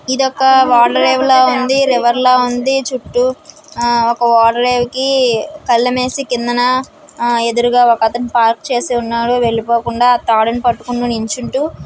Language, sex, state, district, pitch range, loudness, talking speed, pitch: Telugu, female, Andhra Pradesh, Srikakulam, 235-260 Hz, -13 LUFS, 120 wpm, 245 Hz